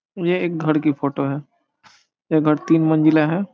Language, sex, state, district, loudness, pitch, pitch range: Hindi, male, Bihar, Saran, -19 LUFS, 155 Hz, 150-165 Hz